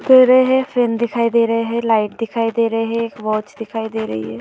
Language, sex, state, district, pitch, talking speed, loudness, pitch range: Hindi, female, Uttar Pradesh, Hamirpur, 230 Hz, 260 wpm, -17 LUFS, 225-235 Hz